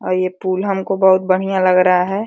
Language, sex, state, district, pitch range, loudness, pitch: Hindi, female, Uttar Pradesh, Deoria, 185-195 Hz, -15 LUFS, 185 Hz